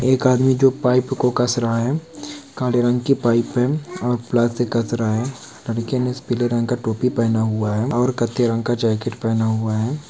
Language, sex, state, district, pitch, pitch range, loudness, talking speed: Hindi, male, Uttarakhand, Uttarkashi, 120 Hz, 115-130 Hz, -20 LUFS, 215 wpm